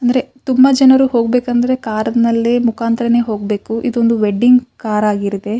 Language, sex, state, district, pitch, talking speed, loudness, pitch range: Kannada, female, Karnataka, Bijapur, 235 Hz, 130 wpm, -14 LUFS, 220-250 Hz